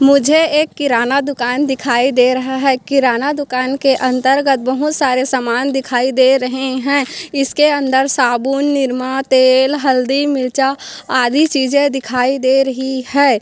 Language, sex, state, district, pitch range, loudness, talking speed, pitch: Hindi, female, Chhattisgarh, Korba, 255-280 Hz, -14 LUFS, 145 wpm, 265 Hz